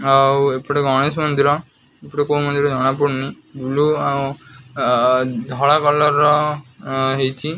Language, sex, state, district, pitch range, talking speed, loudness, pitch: Odia, male, Odisha, Khordha, 135-145 Hz, 125 wpm, -17 LUFS, 140 Hz